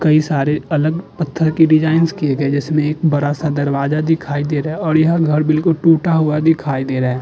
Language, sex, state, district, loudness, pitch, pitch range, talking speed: Hindi, male, Uttar Pradesh, Jalaun, -16 LUFS, 155 Hz, 145-160 Hz, 235 wpm